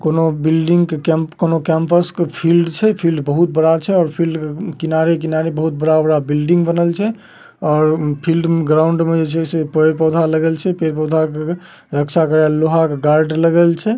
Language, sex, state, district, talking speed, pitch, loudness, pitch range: Magahi, male, Bihar, Samastipur, 170 wpm, 160 Hz, -15 LUFS, 155-170 Hz